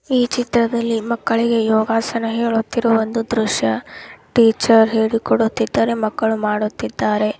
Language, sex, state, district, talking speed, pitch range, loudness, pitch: Kannada, female, Karnataka, Raichur, 90 wpm, 220-235 Hz, -18 LUFS, 225 Hz